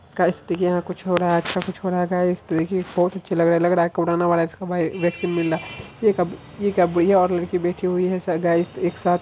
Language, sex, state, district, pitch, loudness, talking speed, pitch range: Angika, female, Bihar, Araria, 175 Hz, -21 LUFS, 285 wpm, 170-180 Hz